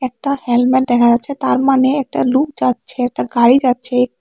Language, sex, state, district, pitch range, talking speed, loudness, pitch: Bengali, female, Tripura, West Tripura, 245-265 Hz, 170 wpm, -15 LUFS, 255 Hz